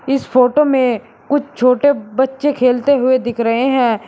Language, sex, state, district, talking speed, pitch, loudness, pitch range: Hindi, male, Uttar Pradesh, Shamli, 160 wpm, 255 Hz, -15 LUFS, 240-275 Hz